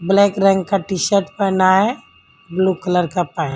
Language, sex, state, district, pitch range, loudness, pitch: Hindi, female, Delhi, New Delhi, 175-195 Hz, -17 LUFS, 190 Hz